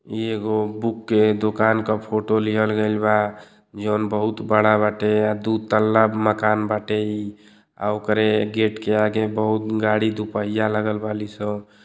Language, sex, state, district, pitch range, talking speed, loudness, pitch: Bhojpuri, male, Uttar Pradesh, Deoria, 105-110 Hz, 150 wpm, -21 LUFS, 110 Hz